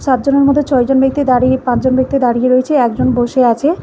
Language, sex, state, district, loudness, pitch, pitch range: Bengali, female, Karnataka, Bangalore, -12 LUFS, 260 Hz, 250-275 Hz